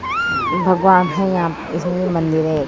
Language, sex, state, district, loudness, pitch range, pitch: Hindi, female, Bihar, Saran, -17 LUFS, 165-185 Hz, 180 Hz